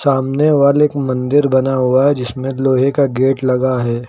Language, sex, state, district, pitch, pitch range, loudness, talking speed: Hindi, male, Uttar Pradesh, Lucknow, 135 Hz, 130-140 Hz, -14 LUFS, 160 wpm